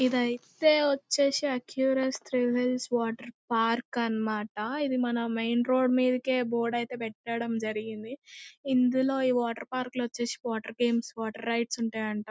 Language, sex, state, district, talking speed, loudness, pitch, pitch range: Telugu, female, Andhra Pradesh, Anantapur, 130 wpm, -29 LUFS, 240 Hz, 230-255 Hz